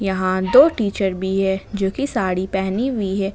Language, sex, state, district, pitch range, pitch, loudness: Hindi, female, Jharkhand, Ranchi, 190-210 Hz, 195 Hz, -19 LUFS